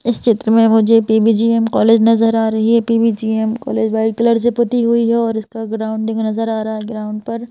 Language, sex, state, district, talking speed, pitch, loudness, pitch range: Hindi, female, Madhya Pradesh, Bhopal, 230 wpm, 225 Hz, -15 LUFS, 220-230 Hz